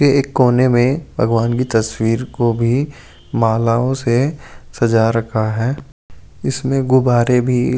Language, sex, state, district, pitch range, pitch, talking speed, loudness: Hindi, male, Delhi, New Delhi, 115-130 Hz, 120 Hz, 140 wpm, -16 LUFS